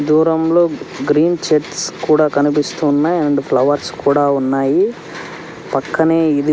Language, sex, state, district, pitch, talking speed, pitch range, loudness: Telugu, male, Andhra Pradesh, Sri Satya Sai, 150 Hz, 110 wpm, 145-165 Hz, -15 LUFS